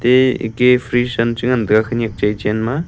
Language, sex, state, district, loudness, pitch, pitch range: Wancho, male, Arunachal Pradesh, Longding, -16 LUFS, 120 Hz, 110-125 Hz